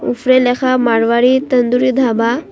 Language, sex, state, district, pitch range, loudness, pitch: Bengali, female, Assam, Hailakandi, 240-255 Hz, -13 LUFS, 250 Hz